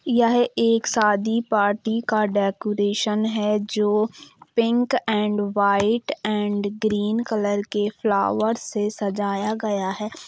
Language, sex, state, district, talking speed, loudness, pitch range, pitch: Hindi, female, Bihar, Gopalganj, 115 wpm, -22 LUFS, 205-225 Hz, 210 Hz